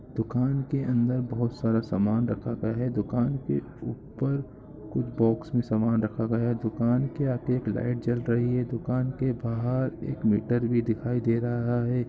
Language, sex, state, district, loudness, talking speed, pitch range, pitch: Hindi, male, Bihar, East Champaran, -27 LUFS, 180 wpm, 115-125 Hz, 120 Hz